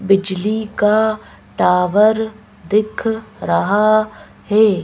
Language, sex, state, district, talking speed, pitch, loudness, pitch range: Hindi, female, Madhya Pradesh, Bhopal, 75 wpm, 210 Hz, -16 LUFS, 195-220 Hz